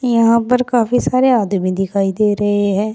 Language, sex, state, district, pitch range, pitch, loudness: Hindi, female, Uttar Pradesh, Saharanpur, 200-245 Hz, 215 Hz, -15 LUFS